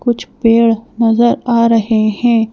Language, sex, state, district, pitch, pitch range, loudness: Hindi, female, Madhya Pradesh, Bhopal, 230 Hz, 225-240 Hz, -13 LUFS